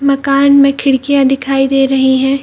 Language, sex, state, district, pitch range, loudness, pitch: Hindi, female, Bihar, Purnia, 270-275 Hz, -11 LUFS, 275 Hz